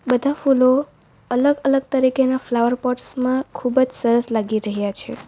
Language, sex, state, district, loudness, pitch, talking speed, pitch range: Gujarati, female, Gujarat, Valsad, -19 LUFS, 255 Hz, 160 wpm, 240-265 Hz